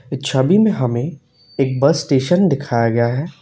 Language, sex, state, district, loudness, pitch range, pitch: Hindi, male, Assam, Kamrup Metropolitan, -17 LUFS, 125-160 Hz, 135 Hz